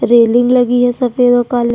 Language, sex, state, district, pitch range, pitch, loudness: Hindi, female, Chhattisgarh, Sukma, 240-245 Hz, 245 Hz, -11 LUFS